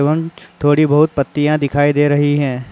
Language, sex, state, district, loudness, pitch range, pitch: Hindi, male, Uttar Pradesh, Jalaun, -15 LUFS, 145-155 Hz, 145 Hz